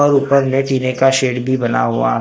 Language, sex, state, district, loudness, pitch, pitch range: Hindi, male, Maharashtra, Gondia, -15 LUFS, 135 Hz, 130-135 Hz